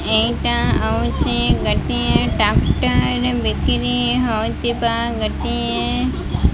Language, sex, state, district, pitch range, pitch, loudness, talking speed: Odia, female, Odisha, Malkangiri, 80-125 Hz, 80 Hz, -18 LUFS, 65 wpm